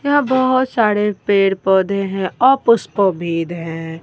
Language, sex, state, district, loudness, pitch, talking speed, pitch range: Hindi, female, Bihar, Katihar, -16 LUFS, 200 Hz, 135 wpm, 185-245 Hz